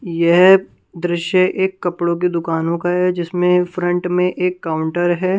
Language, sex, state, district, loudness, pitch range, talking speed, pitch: Hindi, female, Punjab, Kapurthala, -17 LUFS, 170-180 Hz, 155 wpm, 175 Hz